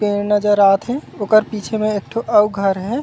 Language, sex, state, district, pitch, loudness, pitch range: Chhattisgarhi, male, Chhattisgarh, Raigarh, 210 Hz, -17 LUFS, 205-220 Hz